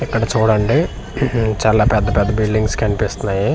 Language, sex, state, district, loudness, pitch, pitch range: Telugu, male, Andhra Pradesh, Manyam, -17 LUFS, 110 Hz, 105-115 Hz